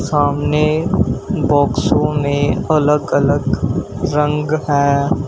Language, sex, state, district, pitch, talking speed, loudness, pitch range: Hindi, male, Uttar Pradesh, Shamli, 150 Hz, 80 wpm, -16 LUFS, 145-155 Hz